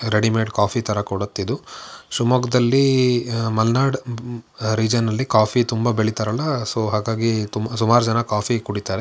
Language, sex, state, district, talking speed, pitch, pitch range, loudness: Kannada, male, Karnataka, Shimoga, 120 wpm, 115 Hz, 110-120 Hz, -20 LUFS